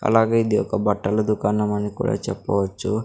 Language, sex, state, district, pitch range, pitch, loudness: Telugu, male, Andhra Pradesh, Sri Satya Sai, 100-115 Hz, 105 Hz, -22 LUFS